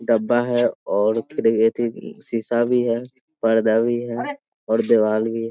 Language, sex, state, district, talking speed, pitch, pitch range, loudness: Hindi, male, Bihar, Sitamarhi, 165 wpm, 115 Hz, 110-120 Hz, -21 LUFS